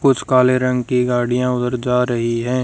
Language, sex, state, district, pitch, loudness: Hindi, female, Haryana, Jhajjar, 125 Hz, -17 LUFS